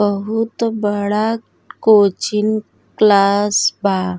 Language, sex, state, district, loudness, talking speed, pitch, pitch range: Bhojpuri, female, Uttar Pradesh, Gorakhpur, -16 LUFS, 70 wpm, 210 Hz, 200-220 Hz